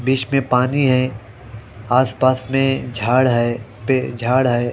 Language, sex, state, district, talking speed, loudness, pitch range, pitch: Hindi, male, Haryana, Jhajjar, 150 wpm, -18 LUFS, 120-130 Hz, 125 Hz